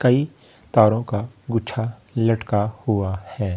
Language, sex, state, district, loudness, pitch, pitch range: Hindi, male, Delhi, New Delhi, -22 LUFS, 110 Hz, 105-120 Hz